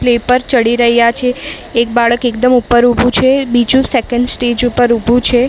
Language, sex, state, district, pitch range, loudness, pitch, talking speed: Gujarati, female, Maharashtra, Mumbai Suburban, 240-250 Hz, -12 LUFS, 245 Hz, 175 wpm